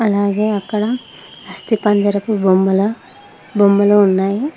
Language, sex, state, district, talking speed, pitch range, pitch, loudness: Telugu, female, Telangana, Mahabubabad, 80 wpm, 200-220 Hz, 205 Hz, -15 LUFS